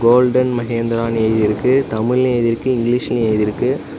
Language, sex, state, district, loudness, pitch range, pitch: Tamil, male, Tamil Nadu, Namakkal, -16 LUFS, 110-125 Hz, 115 Hz